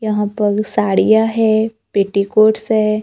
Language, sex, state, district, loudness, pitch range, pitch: Hindi, male, Maharashtra, Gondia, -15 LUFS, 210-220 Hz, 215 Hz